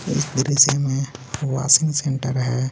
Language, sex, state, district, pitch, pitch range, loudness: Hindi, male, Jharkhand, Garhwa, 135 Hz, 130-140 Hz, -19 LUFS